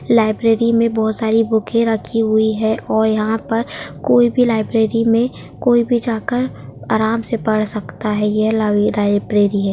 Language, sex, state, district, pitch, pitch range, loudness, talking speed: Hindi, female, West Bengal, Kolkata, 220 Hz, 215-230 Hz, -17 LUFS, 170 wpm